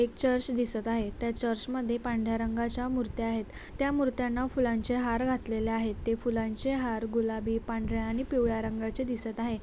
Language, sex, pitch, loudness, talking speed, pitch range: Marathi, female, 235 Hz, -31 LUFS, 170 wpm, 225-250 Hz